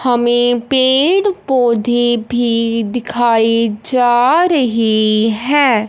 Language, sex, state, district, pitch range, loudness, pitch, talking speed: Hindi, male, Punjab, Fazilka, 230-260 Hz, -13 LUFS, 240 Hz, 80 wpm